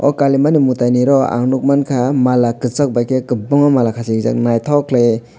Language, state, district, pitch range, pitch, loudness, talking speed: Kokborok, Tripura, West Tripura, 120-140 Hz, 130 Hz, -14 LUFS, 210 wpm